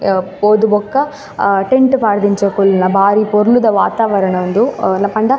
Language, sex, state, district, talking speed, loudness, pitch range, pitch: Tulu, female, Karnataka, Dakshina Kannada, 165 wpm, -13 LUFS, 195-225 Hz, 205 Hz